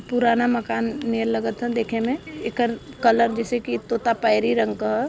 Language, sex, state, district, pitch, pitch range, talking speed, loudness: Hindi, female, Uttar Pradesh, Varanasi, 230 Hz, 225-240 Hz, 165 wpm, -22 LUFS